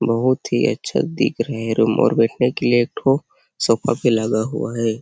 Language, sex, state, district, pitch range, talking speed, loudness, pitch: Hindi, male, Chhattisgarh, Sarguja, 115-130 Hz, 205 wpm, -19 LUFS, 115 Hz